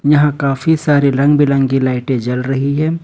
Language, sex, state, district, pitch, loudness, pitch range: Hindi, male, Jharkhand, Ranchi, 140 Hz, -14 LUFS, 135-150 Hz